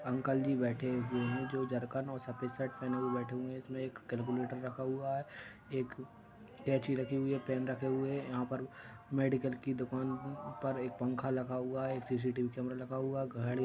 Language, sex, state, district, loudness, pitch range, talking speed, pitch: Hindi, male, Maharashtra, Aurangabad, -37 LUFS, 125-135 Hz, 205 wpm, 130 Hz